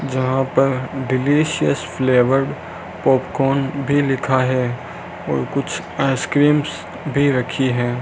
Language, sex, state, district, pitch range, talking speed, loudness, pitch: Hindi, male, Rajasthan, Bikaner, 130-140 Hz, 105 wpm, -19 LUFS, 135 Hz